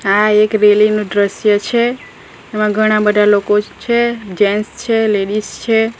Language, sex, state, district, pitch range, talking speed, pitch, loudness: Gujarati, female, Gujarat, Valsad, 210-225 Hz, 140 wpm, 215 Hz, -14 LUFS